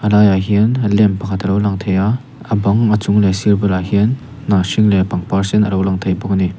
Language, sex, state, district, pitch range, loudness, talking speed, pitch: Mizo, male, Mizoram, Aizawl, 95-105 Hz, -15 LUFS, 280 wpm, 100 Hz